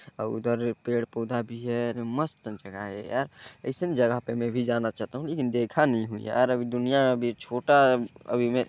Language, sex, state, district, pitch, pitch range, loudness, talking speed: Hindi, male, Chhattisgarh, Balrampur, 120 Hz, 115-125 Hz, -27 LUFS, 200 wpm